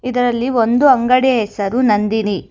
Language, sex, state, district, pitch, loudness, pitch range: Kannada, female, Karnataka, Bangalore, 240 Hz, -15 LUFS, 210-255 Hz